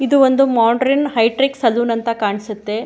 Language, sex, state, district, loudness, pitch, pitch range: Kannada, female, Karnataka, Shimoga, -16 LUFS, 235 Hz, 225-270 Hz